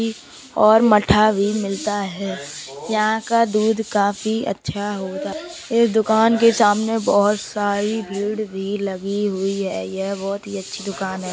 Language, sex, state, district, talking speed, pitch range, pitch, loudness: Hindi, male, Uttar Pradesh, Jalaun, 160 wpm, 195-220 Hz, 205 Hz, -20 LUFS